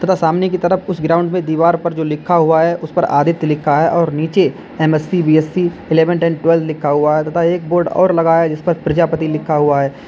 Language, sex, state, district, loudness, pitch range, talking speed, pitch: Hindi, male, Uttar Pradesh, Lalitpur, -15 LUFS, 155-175 Hz, 230 wpm, 165 Hz